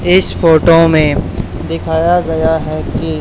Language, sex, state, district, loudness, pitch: Hindi, male, Haryana, Charkhi Dadri, -12 LUFS, 155 Hz